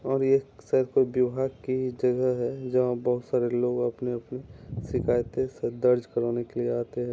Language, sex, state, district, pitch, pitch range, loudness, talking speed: Hindi, male, Bihar, Muzaffarpur, 125 Hz, 120-130 Hz, -27 LUFS, 175 wpm